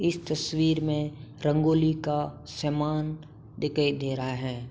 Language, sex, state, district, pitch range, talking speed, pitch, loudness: Hindi, male, Uttar Pradesh, Hamirpur, 140-155 Hz, 125 wpm, 150 Hz, -28 LUFS